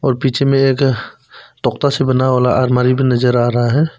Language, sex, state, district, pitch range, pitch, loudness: Hindi, male, Arunachal Pradesh, Papum Pare, 125-135 Hz, 130 Hz, -14 LUFS